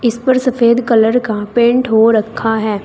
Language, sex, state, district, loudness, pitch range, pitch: Hindi, female, Uttar Pradesh, Saharanpur, -13 LUFS, 220-245 Hz, 230 Hz